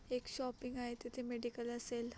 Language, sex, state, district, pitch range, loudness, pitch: Marathi, female, Maharashtra, Solapur, 240-250 Hz, -44 LUFS, 240 Hz